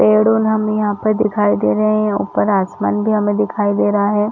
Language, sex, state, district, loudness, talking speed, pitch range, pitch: Hindi, female, Chhattisgarh, Rajnandgaon, -16 LUFS, 250 wpm, 205-215 Hz, 210 Hz